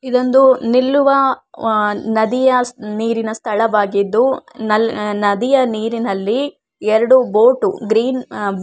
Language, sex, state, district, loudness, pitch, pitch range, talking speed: Kannada, female, Karnataka, Shimoga, -15 LUFS, 230 Hz, 215-260 Hz, 70 wpm